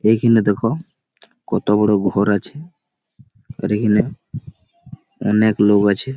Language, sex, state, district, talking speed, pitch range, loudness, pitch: Bengali, male, West Bengal, Malda, 105 wpm, 105-130 Hz, -17 LUFS, 110 Hz